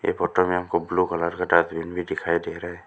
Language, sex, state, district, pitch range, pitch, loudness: Hindi, male, Arunachal Pradesh, Lower Dibang Valley, 85-90 Hz, 90 Hz, -24 LUFS